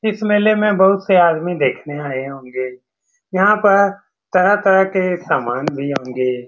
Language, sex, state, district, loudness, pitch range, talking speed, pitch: Hindi, male, Bihar, Saran, -16 LUFS, 135-200 Hz, 150 wpm, 185 Hz